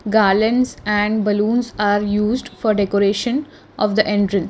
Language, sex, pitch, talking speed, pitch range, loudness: English, female, 210 Hz, 135 wpm, 205-230 Hz, -18 LUFS